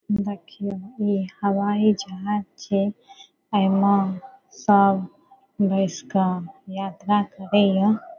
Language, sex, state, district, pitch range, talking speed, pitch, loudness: Maithili, female, Bihar, Saharsa, 195-210 Hz, 90 wpm, 200 Hz, -23 LUFS